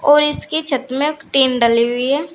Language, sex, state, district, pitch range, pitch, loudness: Hindi, female, Uttar Pradesh, Saharanpur, 255-295 Hz, 275 Hz, -16 LUFS